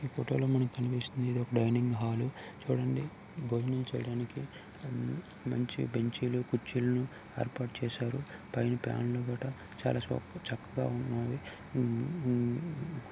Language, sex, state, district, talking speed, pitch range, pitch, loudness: Telugu, male, Karnataka, Gulbarga, 115 wpm, 120-130 Hz, 125 Hz, -34 LUFS